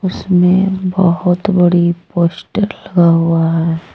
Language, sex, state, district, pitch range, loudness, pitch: Hindi, female, Jharkhand, Deoghar, 170-185 Hz, -13 LUFS, 175 Hz